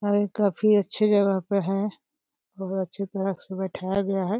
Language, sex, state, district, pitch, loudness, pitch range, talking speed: Hindi, female, Uttar Pradesh, Deoria, 200 Hz, -25 LUFS, 190-205 Hz, 190 wpm